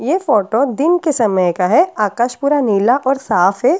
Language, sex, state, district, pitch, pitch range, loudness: Hindi, female, Bihar, Katihar, 245 Hz, 210-290 Hz, -15 LUFS